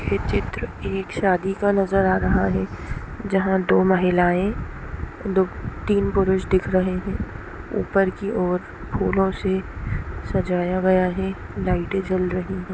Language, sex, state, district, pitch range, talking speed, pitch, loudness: Hindi, female, Bihar, East Champaran, 180-195 Hz, 140 wpm, 185 Hz, -22 LUFS